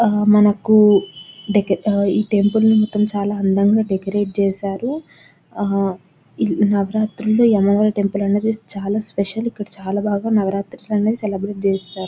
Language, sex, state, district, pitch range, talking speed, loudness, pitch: Telugu, female, Telangana, Nalgonda, 195-215 Hz, 120 wpm, -18 LUFS, 205 Hz